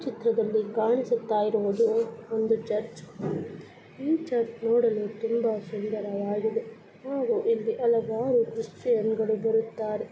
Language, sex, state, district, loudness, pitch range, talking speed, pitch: Kannada, female, Karnataka, Belgaum, -27 LUFS, 215-235 Hz, 100 wpm, 225 Hz